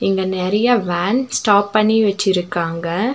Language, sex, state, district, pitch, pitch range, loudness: Tamil, female, Tamil Nadu, Nilgiris, 200 Hz, 180-220 Hz, -17 LUFS